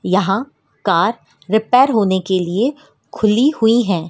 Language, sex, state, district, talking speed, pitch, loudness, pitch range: Hindi, female, Madhya Pradesh, Dhar, 130 wpm, 220 Hz, -16 LUFS, 190-250 Hz